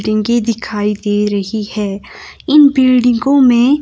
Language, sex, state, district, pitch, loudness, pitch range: Hindi, female, Himachal Pradesh, Shimla, 230 Hz, -13 LUFS, 210-255 Hz